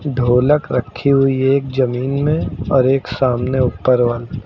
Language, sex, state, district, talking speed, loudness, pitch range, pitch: Hindi, male, Uttar Pradesh, Lucknow, 160 wpm, -16 LUFS, 125-140 Hz, 130 Hz